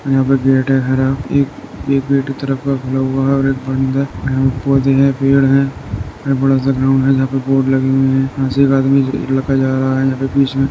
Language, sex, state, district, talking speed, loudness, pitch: Hindi, male, Uttar Pradesh, Jyotiba Phule Nagar, 240 wpm, -15 LUFS, 135 Hz